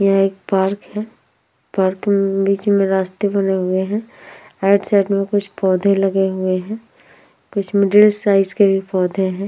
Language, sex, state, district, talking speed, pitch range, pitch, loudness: Hindi, female, Uttar Pradesh, Hamirpur, 185 wpm, 190-200 Hz, 195 Hz, -17 LUFS